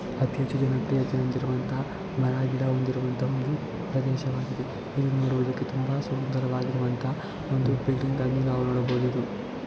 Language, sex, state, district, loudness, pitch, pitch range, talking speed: Kannada, male, Karnataka, Belgaum, -28 LUFS, 130 Hz, 130-135 Hz, 125 wpm